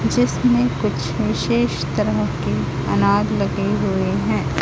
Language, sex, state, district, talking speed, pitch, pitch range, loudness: Hindi, female, Chhattisgarh, Raipur, 115 wpm, 120 Hz, 115-125 Hz, -19 LUFS